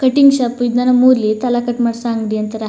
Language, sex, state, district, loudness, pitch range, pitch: Kannada, female, Karnataka, Chamarajanagar, -14 LUFS, 225-250 Hz, 240 Hz